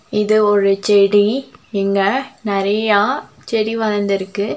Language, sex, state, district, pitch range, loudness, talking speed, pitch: Tamil, female, Tamil Nadu, Nilgiris, 200-215 Hz, -16 LUFS, 90 wpm, 205 Hz